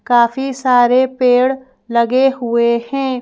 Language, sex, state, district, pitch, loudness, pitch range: Hindi, female, Madhya Pradesh, Bhopal, 250 Hz, -14 LUFS, 235-265 Hz